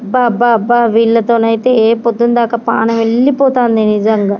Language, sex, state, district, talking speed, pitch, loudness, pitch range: Telugu, female, Telangana, Karimnagar, 135 wpm, 230 Hz, -11 LUFS, 225-240 Hz